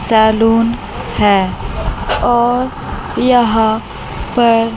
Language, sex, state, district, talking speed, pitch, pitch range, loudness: Hindi, female, Chandigarh, Chandigarh, 65 wpm, 225 Hz, 220-240 Hz, -14 LUFS